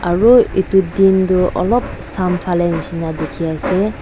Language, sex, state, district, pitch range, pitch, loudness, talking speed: Nagamese, female, Nagaland, Dimapur, 170-190 Hz, 185 Hz, -15 LUFS, 165 wpm